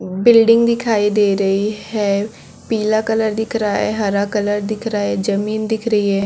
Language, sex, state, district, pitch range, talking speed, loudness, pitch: Hindi, female, Chhattisgarh, Korba, 200-220 Hz, 180 wpm, -17 LUFS, 210 Hz